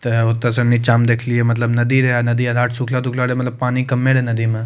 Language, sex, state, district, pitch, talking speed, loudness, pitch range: Maithili, male, Bihar, Madhepura, 120 Hz, 270 wpm, -17 LUFS, 120-125 Hz